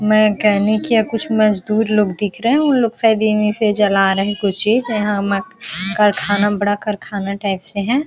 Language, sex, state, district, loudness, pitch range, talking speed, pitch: Hindi, female, Bihar, Araria, -16 LUFS, 200-220 Hz, 180 wpm, 210 Hz